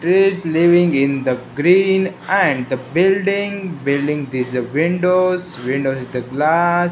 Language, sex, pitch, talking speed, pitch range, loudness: English, male, 165 Hz, 140 wpm, 135-180 Hz, -17 LUFS